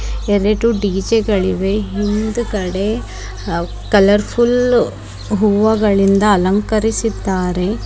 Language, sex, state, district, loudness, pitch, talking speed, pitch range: Kannada, female, Karnataka, Bidar, -15 LUFS, 205 Hz, 70 wpm, 190-215 Hz